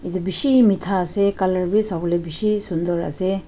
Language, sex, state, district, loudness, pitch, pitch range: Nagamese, female, Nagaland, Dimapur, -17 LUFS, 185 Hz, 175-200 Hz